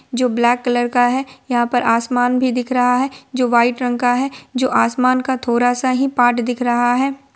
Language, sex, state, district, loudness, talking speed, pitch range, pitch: Hindi, female, Bihar, Supaul, -17 LUFS, 210 wpm, 245-255 Hz, 245 Hz